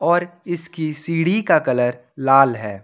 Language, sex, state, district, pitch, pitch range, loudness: Hindi, male, Jharkhand, Ranchi, 155 Hz, 125-175 Hz, -19 LUFS